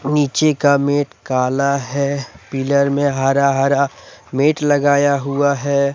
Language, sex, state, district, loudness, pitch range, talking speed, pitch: Hindi, male, Jharkhand, Deoghar, -17 LUFS, 135-145 Hz, 130 wpm, 140 Hz